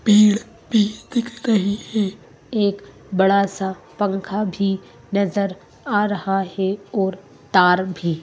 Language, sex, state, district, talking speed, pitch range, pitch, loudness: Hindi, female, Madhya Pradesh, Bhopal, 130 wpm, 190-210 Hz, 200 Hz, -21 LUFS